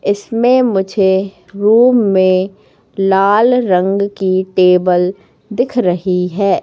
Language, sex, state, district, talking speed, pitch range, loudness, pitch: Hindi, female, Madhya Pradesh, Katni, 100 wpm, 185-220 Hz, -13 LUFS, 195 Hz